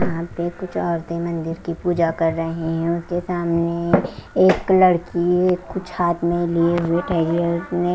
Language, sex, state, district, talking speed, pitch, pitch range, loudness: Hindi, female, Chandigarh, Chandigarh, 145 wpm, 170 Hz, 170-175 Hz, -20 LUFS